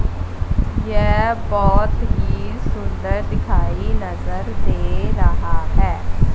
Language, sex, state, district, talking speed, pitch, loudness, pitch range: Hindi, female, Punjab, Fazilka, 85 wpm, 90 Hz, -21 LUFS, 85-100 Hz